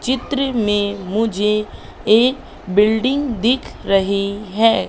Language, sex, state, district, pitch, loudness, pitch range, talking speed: Hindi, female, Madhya Pradesh, Katni, 220 Hz, -18 LUFS, 205-245 Hz, 100 wpm